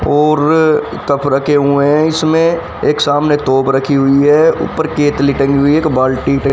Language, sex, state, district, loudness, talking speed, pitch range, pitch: Hindi, male, Haryana, Rohtak, -12 LUFS, 185 wpm, 140-155 Hz, 145 Hz